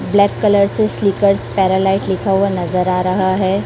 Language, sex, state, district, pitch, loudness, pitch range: Hindi, female, Chhattisgarh, Raipur, 195 Hz, -15 LUFS, 190-200 Hz